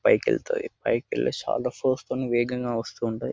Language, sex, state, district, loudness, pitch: Telugu, male, Telangana, Nalgonda, -27 LUFS, 130 Hz